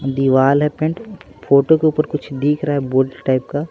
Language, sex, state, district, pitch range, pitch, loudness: Hindi, male, Bihar, Patna, 135-155 Hz, 145 Hz, -17 LUFS